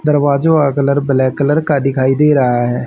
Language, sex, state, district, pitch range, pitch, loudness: Hindi, male, Haryana, Rohtak, 130-145 Hz, 140 Hz, -13 LUFS